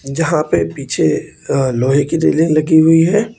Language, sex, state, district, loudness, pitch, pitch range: Hindi, male, Uttar Pradesh, Lucknow, -14 LUFS, 155 Hz, 135-165 Hz